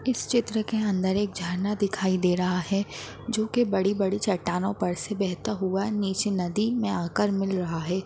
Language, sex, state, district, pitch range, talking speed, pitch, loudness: Hindi, female, Maharashtra, Aurangabad, 185-215 Hz, 185 wpm, 195 Hz, -27 LUFS